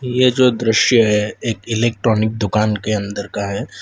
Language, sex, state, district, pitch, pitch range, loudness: Hindi, male, Gujarat, Valsad, 110 Hz, 105-120 Hz, -17 LUFS